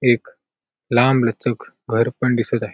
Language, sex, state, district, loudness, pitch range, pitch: Marathi, male, Maharashtra, Sindhudurg, -19 LUFS, 115-125 Hz, 120 Hz